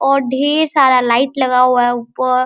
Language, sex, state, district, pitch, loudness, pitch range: Hindi, male, Bihar, Araria, 255 Hz, -14 LUFS, 250-275 Hz